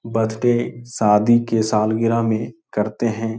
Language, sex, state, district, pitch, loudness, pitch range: Hindi, male, Bihar, Jahanabad, 115 Hz, -19 LUFS, 110-115 Hz